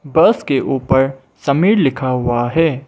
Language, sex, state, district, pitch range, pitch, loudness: Hindi, male, Mizoram, Aizawl, 130-140 Hz, 135 Hz, -15 LUFS